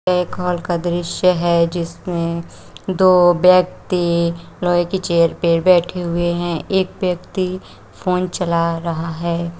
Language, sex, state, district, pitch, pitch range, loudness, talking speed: Hindi, female, Uttar Pradesh, Shamli, 175 Hz, 170-180 Hz, -18 LUFS, 140 wpm